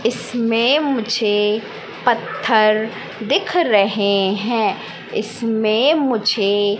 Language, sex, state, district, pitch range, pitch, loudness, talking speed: Hindi, female, Madhya Pradesh, Katni, 210-235 Hz, 220 Hz, -18 LUFS, 70 wpm